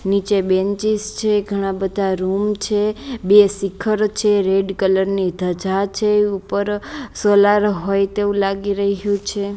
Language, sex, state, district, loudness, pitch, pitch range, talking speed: Gujarati, female, Gujarat, Gandhinagar, -18 LUFS, 200 Hz, 195-210 Hz, 140 wpm